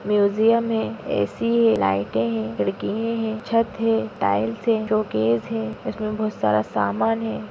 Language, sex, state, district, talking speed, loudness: Hindi, female, Maharashtra, Nagpur, 150 wpm, -22 LUFS